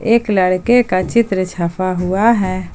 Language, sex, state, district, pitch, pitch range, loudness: Hindi, male, Jharkhand, Ranchi, 185 Hz, 185-230 Hz, -15 LUFS